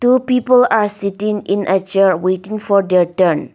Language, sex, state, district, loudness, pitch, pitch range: English, female, Nagaland, Dimapur, -15 LUFS, 200 Hz, 185-215 Hz